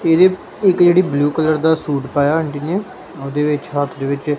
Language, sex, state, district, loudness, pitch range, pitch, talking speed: Punjabi, male, Punjab, Kapurthala, -16 LUFS, 145-170 Hz, 150 Hz, 205 wpm